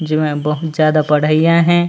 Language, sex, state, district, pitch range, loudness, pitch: Chhattisgarhi, male, Chhattisgarh, Raigarh, 150-165 Hz, -14 LUFS, 155 Hz